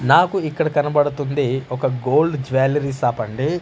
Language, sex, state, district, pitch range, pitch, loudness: Telugu, male, Andhra Pradesh, Manyam, 130-155 Hz, 145 Hz, -19 LUFS